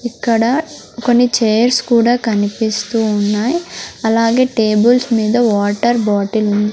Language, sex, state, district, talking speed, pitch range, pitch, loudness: Telugu, female, Andhra Pradesh, Sri Satya Sai, 105 wpm, 215-240 Hz, 230 Hz, -14 LUFS